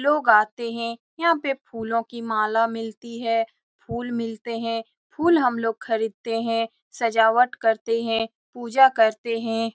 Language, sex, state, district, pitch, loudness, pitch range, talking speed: Hindi, female, Bihar, Saran, 230 Hz, -23 LUFS, 225-240 Hz, 185 wpm